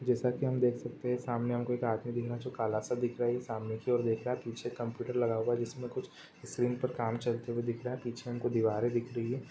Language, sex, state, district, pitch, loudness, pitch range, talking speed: Hindi, male, Bihar, Jahanabad, 120 Hz, -34 LUFS, 120-125 Hz, 295 wpm